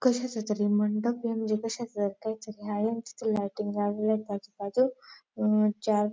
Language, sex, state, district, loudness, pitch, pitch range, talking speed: Marathi, female, Maharashtra, Dhule, -29 LUFS, 215 Hz, 205-225 Hz, 125 wpm